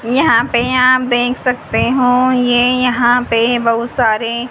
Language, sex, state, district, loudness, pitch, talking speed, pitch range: Hindi, female, Haryana, Jhajjar, -13 LUFS, 245 Hz, 145 wpm, 235-255 Hz